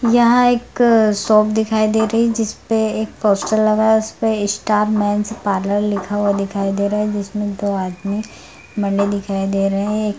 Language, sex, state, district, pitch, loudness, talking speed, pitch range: Hindi, female, Bihar, Lakhisarai, 210 Hz, -17 LUFS, 190 wpm, 200-220 Hz